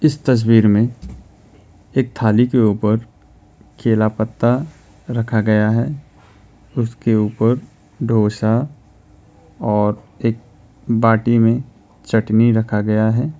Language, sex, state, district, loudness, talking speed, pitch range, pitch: Hindi, male, West Bengal, Alipurduar, -17 LUFS, 105 wpm, 105-120 Hz, 110 Hz